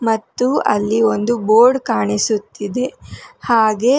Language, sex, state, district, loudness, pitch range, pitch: Kannada, female, Karnataka, Bangalore, -16 LUFS, 210-240 Hz, 225 Hz